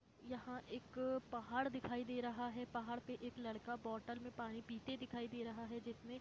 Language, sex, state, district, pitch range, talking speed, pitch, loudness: Hindi, female, Jharkhand, Sahebganj, 235-250 Hz, 195 wpm, 240 Hz, -47 LUFS